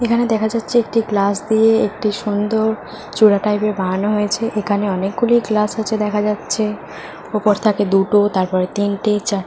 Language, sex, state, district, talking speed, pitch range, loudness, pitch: Bengali, female, West Bengal, Paschim Medinipur, 170 wpm, 205-220 Hz, -17 LUFS, 210 Hz